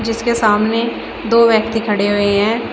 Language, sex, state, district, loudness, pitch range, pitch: Hindi, female, Uttar Pradesh, Shamli, -15 LUFS, 210-230 Hz, 225 Hz